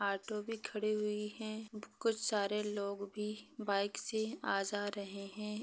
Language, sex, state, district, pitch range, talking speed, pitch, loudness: Hindi, female, Maharashtra, Pune, 200-220 Hz, 160 wpm, 210 Hz, -39 LUFS